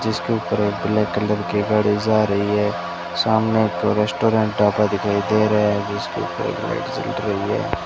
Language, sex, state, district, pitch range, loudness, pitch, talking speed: Hindi, male, Rajasthan, Bikaner, 100-110 Hz, -20 LUFS, 105 Hz, 175 wpm